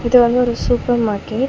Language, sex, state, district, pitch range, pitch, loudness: Tamil, female, Tamil Nadu, Chennai, 235-245 Hz, 240 Hz, -16 LUFS